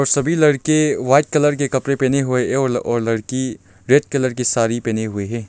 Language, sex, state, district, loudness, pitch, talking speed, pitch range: Hindi, male, Arunachal Pradesh, Longding, -18 LUFS, 130 Hz, 195 wpm, 115-140 Hz